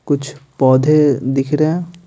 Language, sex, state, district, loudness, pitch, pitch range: Hindi, male, Bihar, Patna, -15 LUFS, 145 Hz, 135-155 Hz